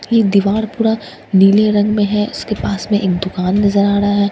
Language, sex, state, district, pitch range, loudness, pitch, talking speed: Hindi, female, Bihar, Katihar, 200-210 Hz, -15 LUFS, 205 Hz, 250 wpm